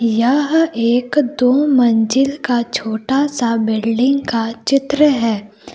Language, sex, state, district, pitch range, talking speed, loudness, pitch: Hindi, female, Jharkhand, Palamu, 230-275 Hz, 115 wpm, -16 LUFS, 245 Hz